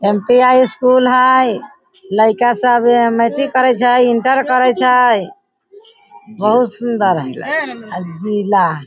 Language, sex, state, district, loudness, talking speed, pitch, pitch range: Hindi, female, Bihar, Sitamarhi, -13 LUFS, 115 wpm, 245 Hz, 215-255 Hz